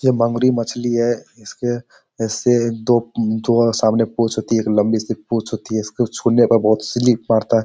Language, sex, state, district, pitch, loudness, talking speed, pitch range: Hindi, male, Bihar, Jamui, 115 Hz, -18 LUFS, 195 wpm, 110-120 Hz